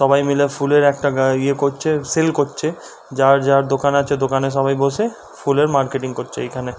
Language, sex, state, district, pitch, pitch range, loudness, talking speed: Bengali, male, West Bengal, Dakshin Dinajpur, 140 Hz, 135-145 Hz, -18 LUFS, 175 wpm